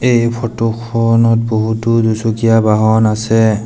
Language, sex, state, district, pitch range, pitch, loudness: Assamese, male, Assam, Sonitpur, 110-115 Hz, 115 Hz, -13 LUFS